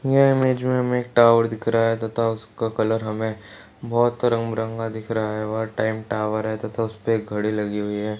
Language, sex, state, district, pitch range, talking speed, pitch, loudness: Hindi, male, Uttarakhand, Uttarkashi, 110-115 Hz, 220 wpm, 110 Hz, -22 LUFS